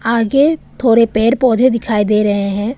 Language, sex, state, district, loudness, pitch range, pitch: Hindi, female, Arunachal Pradesh, Papum Pare, -13 LUFS, 210-250 Hz, 230 Hz